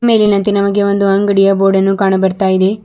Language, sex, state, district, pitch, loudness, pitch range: Kannada, female, Karnataka, Bidar, 195 Hz, -12 LUFS, 195-205 Hz